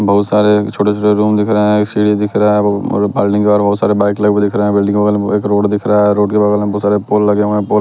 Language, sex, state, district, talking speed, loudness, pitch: Hindi, male, Bihar, West Champaran, 330 wpm, -13 LUFS, 105 Hz